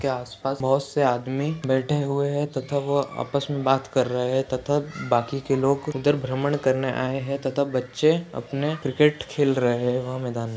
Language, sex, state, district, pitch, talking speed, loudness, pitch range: Hindi, male, Chhattisgarh, Bastar, 135 Hz, 205 wpm, -24 LUFS, 130-145 Hz